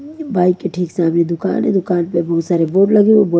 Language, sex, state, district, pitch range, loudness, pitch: Hindi, female, Haryana, Charkhi Dadri, 170-200 Hz, -15 LUFS, 180 Hz